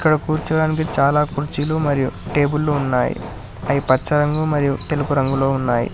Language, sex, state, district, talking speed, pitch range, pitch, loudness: Telugu, male, Telangana, Hyderabad, 150 wpm, 135-150 Hz, 145 Hz, -19 LUFS